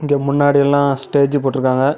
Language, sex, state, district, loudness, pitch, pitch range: Tamil, male, Tamil Nadu, Namakkal, -15 LUFS, 140 Hz, 135-145 Hz